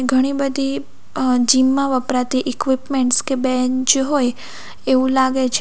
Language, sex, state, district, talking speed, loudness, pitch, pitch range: Gujarati, female, Gujarat, Valsad, 140 wpm, -18 LUFS, 260 Hz, 255-270 Hz